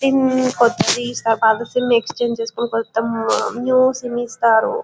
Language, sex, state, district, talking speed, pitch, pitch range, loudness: Telugu, female, Telangana, Karimnagar, 135 wpm, 235 Hz, 230-250 Hz, -18 LUFS